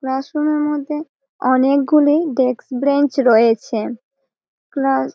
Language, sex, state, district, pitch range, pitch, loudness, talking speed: Bengali, female, West Bengal, Malda, 255-295 Hz, 270 Hz, -17 LUFS, 105 wpm